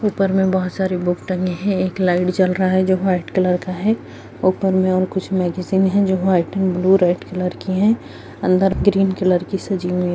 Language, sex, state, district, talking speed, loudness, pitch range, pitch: Hindi, female, Bihar, Madhepura, 225 wpm, -18 LUFS, 180-190 Hz, 185 Hz